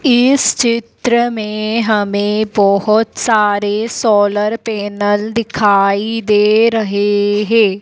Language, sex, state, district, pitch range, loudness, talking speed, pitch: Hindi, female, Madhya Pradesh, Dhar, 205-225 Hz, -14 LUFS, 90 wpm, 215 Hz